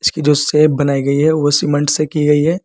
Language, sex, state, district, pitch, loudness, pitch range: Hindi, male, Uttar Pradesh, Saharanpur, 150 Hz, -14 LUFS, 145-155 Hz